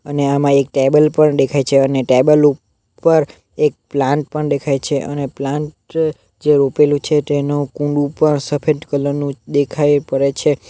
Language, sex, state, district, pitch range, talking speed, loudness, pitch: Gujarati, male, Gujarat, Navsari, 140-150 Hz, 170 wpm, -16 LUFS, 145 Hz